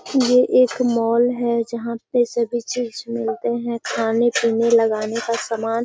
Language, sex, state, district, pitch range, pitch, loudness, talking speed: Hindi, female, Bihar, Gaya, 230-240 Hz, 235 Hz, -20 LUFS, 155 wpm